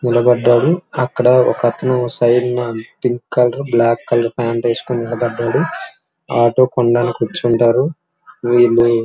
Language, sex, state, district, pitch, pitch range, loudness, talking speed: Telugu, male, Andhra Pradesh, Srikakulam, 120 Hz, 120-125 Hz, -15 LUFS, 100 wpm